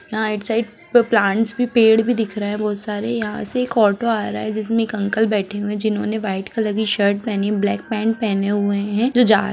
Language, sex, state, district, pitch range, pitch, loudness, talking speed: Hindi, female, Bihar, Begusarai, 205-225 Hz, 215 Hz, -19 LUFS, 245 wpm